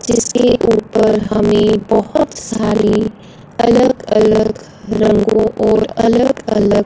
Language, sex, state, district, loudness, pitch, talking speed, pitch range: Hindi, female, Punjab, Fazilka, -13 LUFS, 220 Hz, 95 wpm, 215-230 Hz